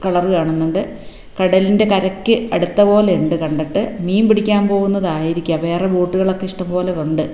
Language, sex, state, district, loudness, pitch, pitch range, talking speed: Malayalam, female, Kerala, Wayanad, -16 LUFS, 185 Hz, 170-200 Hz, 115 wpm